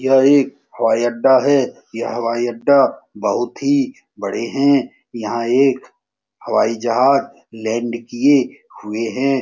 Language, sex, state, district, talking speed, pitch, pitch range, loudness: Hindi, male, Bihar, Saran, 125 wpm, 125 Hz, 115-140 Hz, -17 LUFS